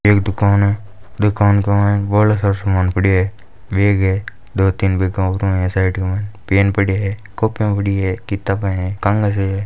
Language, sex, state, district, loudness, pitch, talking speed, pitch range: Marwari, male, Rajasthan, Nagaur, -17 LUFS, 100 Hz, 170 wpm, 95-105 Hz